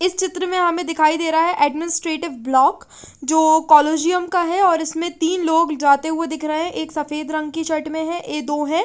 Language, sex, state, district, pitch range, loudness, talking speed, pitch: Hindi, female, Chandigarh, Chandigarh, 305-340 Hz, -19 LUFS, 225 wpm, 320 Hz